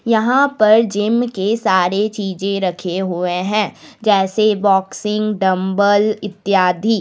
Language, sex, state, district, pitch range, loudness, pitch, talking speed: Hindi, female, Jharkhand, Deoghar, 190-220 Hz, -16 LUFS, 205 Hz, 110 wpm